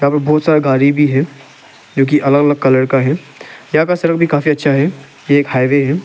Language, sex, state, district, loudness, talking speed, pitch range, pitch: Hindi, male, Arunachal Pradesh, Lower Dibang Valley, -13 LUFS, 230 wpm, 135-150 Hz, 145 Hz